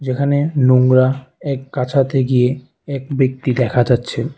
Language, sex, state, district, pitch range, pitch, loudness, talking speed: Bengali, male, Tripura, West Tripura, 125-140 Hz, 130 Hz, -16 LUFS, 125 wpm